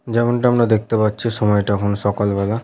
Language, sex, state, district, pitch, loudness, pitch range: Bengali, male, West Bengal, Paschim Medinipur, 110 Hz, -18 LUFS, 100-115 Hz